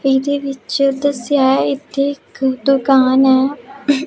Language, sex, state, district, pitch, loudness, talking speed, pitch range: Punjabi, female, Punjab, Pathankot, 275 Hz, -15 LUFS, 130 wpm, 265-280 Hz